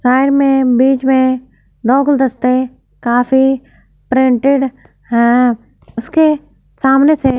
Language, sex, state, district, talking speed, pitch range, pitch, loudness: Hindi, female, Punjab, Fazilka, 105 wpm, 250-270 Hz, 260 Hz, -13 LUFS